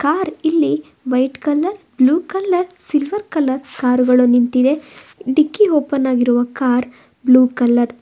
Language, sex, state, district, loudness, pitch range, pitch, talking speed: Kannada, female, Karnataka, Bangalore, -16 LUFS, 250-315 Hz, 270 Hz, 125 wpm